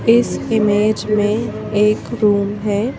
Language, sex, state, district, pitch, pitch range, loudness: Hindi, female, Madhya Pradesh, Bhopal, 210 Hz, 205-220 Hz, -17 LUFS